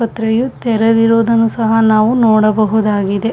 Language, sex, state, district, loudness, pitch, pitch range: Kannada, female, Karnataka, Shimoga, -12 LUFS, 225 Hz, 215-230 Hz